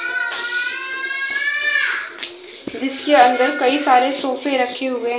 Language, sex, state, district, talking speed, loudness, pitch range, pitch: Hindi, female, Haryana, Jhajjar, 80 wpm, -18 LUFS, 255-430 Hz, 275 Hz